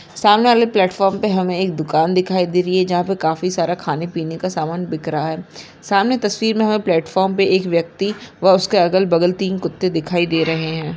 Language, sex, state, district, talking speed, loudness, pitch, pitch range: Hindi, female, Maharashtra, Aurangabad, 215 wpm, -17 LUFS, 180 Hz, 165-195 Hz